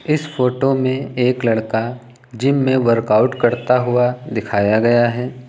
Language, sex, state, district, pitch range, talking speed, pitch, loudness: Hindi, male, Uttar Pradesh, Lucknow, 115-130 Hz, 140 wpm, 125 Hz, -17 LUFS